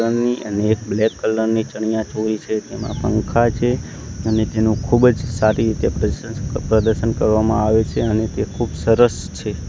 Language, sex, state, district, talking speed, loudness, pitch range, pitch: Gujarati, male, Gujarat, Gandhinagar, 155 wpm, -19 LUFS, 110-115 Hz, 110 Hz